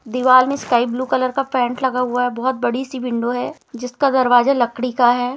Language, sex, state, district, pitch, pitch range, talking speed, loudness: Hindi, female, Chhattisgarh, Rajnandgaon, 250 Hz, 245-260 Hz, 210 wpm, -18 LUFS